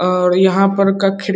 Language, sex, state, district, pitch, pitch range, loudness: Hindi, male, Bihar, Muzaffarpur, 195 Hz, 180-195 Hz, -14 LUFS